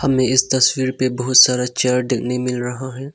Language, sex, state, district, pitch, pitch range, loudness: Hindi, male, Arunachal Pradesh, Longding, 130 Hz, 125-130 Hz, -16 LUFS